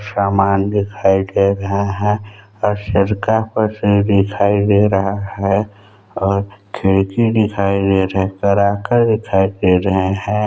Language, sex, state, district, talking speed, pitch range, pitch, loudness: Hindi, male, Chhattisgarh, Balrampur, 125 wpm, 100-105 Hz, 100 Hz, -16 LUFS